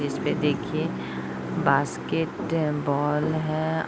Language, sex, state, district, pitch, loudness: Hindi, female, Bihar, Sitamarhi, 150 Hz, -26 LUFS